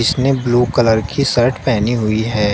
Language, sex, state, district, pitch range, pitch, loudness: Hindi, male, Uttar Pradesh, Shamli, 110-130 Hz, 120 Hz, -15 LUFS